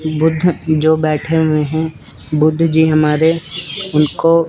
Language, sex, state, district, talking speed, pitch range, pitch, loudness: Hindi, male, Chandigarh, Chandigarh, 120 wpm, 155-165 Hz, 160 Hz, -15 LUFS